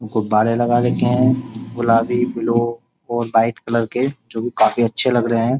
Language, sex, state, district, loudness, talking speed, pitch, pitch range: Hindi, male, Uttar Pradesh, Jyotiba Phule Nagar, -18 LUFS, 180 wpm, 120 Hz, 115-120 Hz